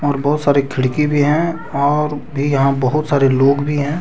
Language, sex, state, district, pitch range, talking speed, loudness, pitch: Hindi, male, Jharkhand, Deoghar, 140-150 Hz, 195 wpm, -16 LUFS, 145 Hz